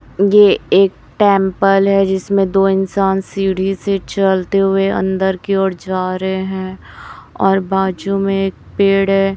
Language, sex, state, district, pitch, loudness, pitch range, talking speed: Hindi, female, Chhattisgarh, Raipur, 195 Hz, -15 LUFS, 190-195 Hz, 145 wpm